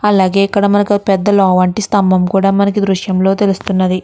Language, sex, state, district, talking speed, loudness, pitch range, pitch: Telugu, female, Andhra Pradesh, Guntur, 190 wpm, -12 LUFS, 185-205 Hz, 195 Hz